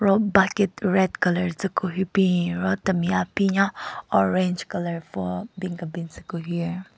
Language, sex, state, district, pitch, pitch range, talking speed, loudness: Rengma, female, Nagaland, Kohima, 180 Hz, 170-190 Hz, 165 wpm, -24 LUFS